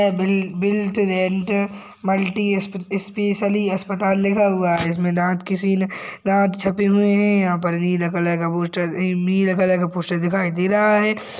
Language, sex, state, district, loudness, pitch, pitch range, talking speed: Hindi, male, Uttarakhand, Tehri Garhwal, -19 LUFS, 195 Hz, 180-200 Hz, 160 wpm